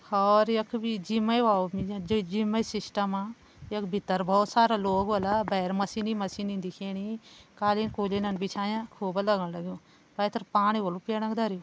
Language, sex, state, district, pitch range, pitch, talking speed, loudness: Garhwali, female, Uttarakhand, Uttarkashi, 195-220 Hz, 205 Hz, 155 wpm, -28 LUFS